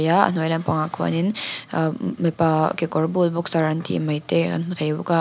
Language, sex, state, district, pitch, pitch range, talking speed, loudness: Mizo, female, Mizoram, Aizawl, 165 Hz, 155-170 Hz, 205 wpm, -22 LUFS